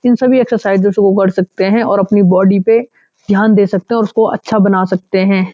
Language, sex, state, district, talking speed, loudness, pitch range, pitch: Hindi, male, Uttarakhand, Uttarkashi, 225 wpm, -12 LUFS, 190-225 Hz, 200 Hz